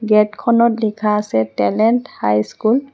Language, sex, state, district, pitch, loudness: Assamese, female, Assam, Hailakandi, 215 Hz, -16 LUFS